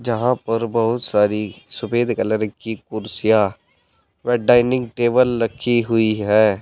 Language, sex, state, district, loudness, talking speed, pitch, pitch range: Hindi, male, Uttar Pradesh, Saharanpur, -19 LUFS, 125 wpm, 115 Hz, 110-120 Hz